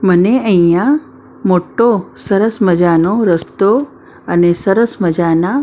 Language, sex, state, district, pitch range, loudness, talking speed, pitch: Gujarati, female, Maharashtra, Mumbai Suburban, 175-230 Hz, -13 LUFS, 95 wpm, 195 Hz